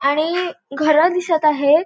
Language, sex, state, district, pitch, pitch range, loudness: Marathi, female, Goa, North and South Goa, 310 Hz, 300-340 Hz, -17 LUFS